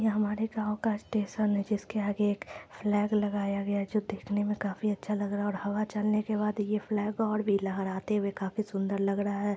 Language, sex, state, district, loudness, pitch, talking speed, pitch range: Hindi, female, Bihar, Lakhisarai, -31 LUFS, 205 Hz, 240 wpm, 200-210 Hz